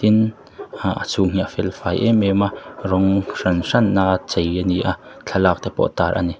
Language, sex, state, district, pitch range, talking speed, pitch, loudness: Mizo, male, Mizoram, Aizawl, 90-105 Hz, 215 wpm, 95 Hz, -19 LUFS